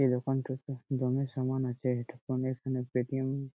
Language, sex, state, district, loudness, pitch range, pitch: Bengali, male, West Bengal, Malda, -33 LUFS, 125-135 Hz, 130 Hz